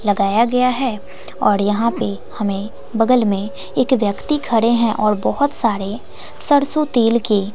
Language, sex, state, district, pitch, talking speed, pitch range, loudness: Hindi, female, Bihar, West Champaran, 225 Hz, 150 wpm, 200-250 Hz, -17 LUFS